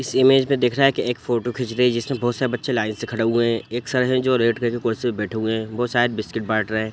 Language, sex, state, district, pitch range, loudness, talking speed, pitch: Hindi, male, Bihar, Sitamarhi, 115-125 Hz, -21 LUFS, 320 wpm, 120 Hz